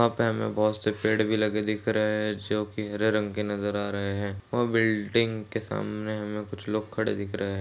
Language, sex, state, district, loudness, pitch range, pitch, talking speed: Hindi, male, Maharashtra, Solapur, -28 LUFS, 105-110 Hz, 105 Hz, 245 wpm